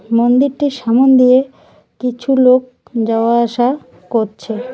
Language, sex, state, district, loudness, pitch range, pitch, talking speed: Bengali, female, West Bengal, Cooch Behar, -14 LUFS, 230-260 Hz, 250 Hz, 100 wpm